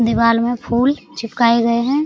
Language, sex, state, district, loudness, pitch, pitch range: Hindi, female, Bihar, Araria, -16 LUFS, 235 Hz, 230-260 Hz